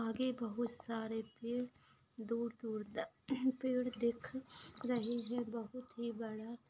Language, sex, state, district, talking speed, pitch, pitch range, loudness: Hindi, female, Maharashtra, Aurangabad, 115 wpm, 235 Hz, 230-250 Hz, -41 LUFS